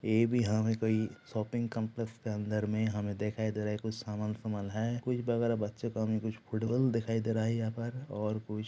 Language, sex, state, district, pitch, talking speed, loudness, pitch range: Hindi, male, Jharkhand, Jamtara, 110 Hz, 205 wpm, -34 LUFS, 105-115 Hz